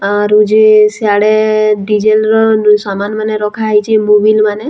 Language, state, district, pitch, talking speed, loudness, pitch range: Sambalpuri, Odisha, Sambalpur, 215 Hz, 130 wpm, -10 LUFS, 210-215 Hz